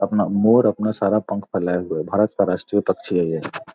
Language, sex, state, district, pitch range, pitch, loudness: Hindi, male, Bihar, Gopalganj, 90-105 Hz, 100 Hz, -20 LUFS